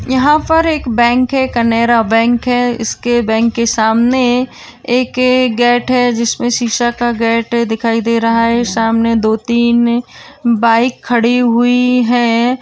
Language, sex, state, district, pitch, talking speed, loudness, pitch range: Hindi, female, Uttar Pradesh, Hamirpur, 240 Hz, 140 wpm, -12 LUFS, 230-245 Hz